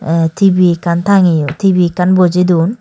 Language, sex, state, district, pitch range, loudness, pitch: Chakma, female, Tripura, Dhalai, 170-185 Hz, -11 LUFS, 180 Hz